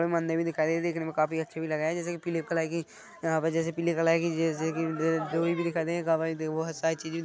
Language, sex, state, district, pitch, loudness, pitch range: Hindi, male, Chhattisgarh, Korba, 165 Hz, -29 LUFS, 160-170 Hz